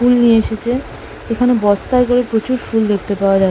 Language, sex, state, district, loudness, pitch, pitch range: Bengali, female, West Bengal, Malda, -15 LUFS, 230 Hz, 205-245 Hz